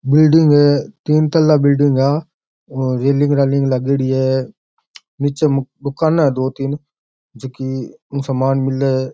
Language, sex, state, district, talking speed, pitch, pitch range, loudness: Rajasthani, male, Rajasthan, Churu, 145 wpm, 140 Hz, 130-145 Hz, -16 LUFS